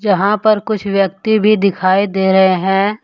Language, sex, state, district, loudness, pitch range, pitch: Hindi, male, Jharkhand, Deoghar, -13 LUFS, 190-215 Hz, 200 Hz